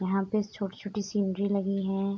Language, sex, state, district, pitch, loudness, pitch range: Hindi, female, Bihar, Darbhanga, 200 Hz, -30 LUFS, 195-205 Hz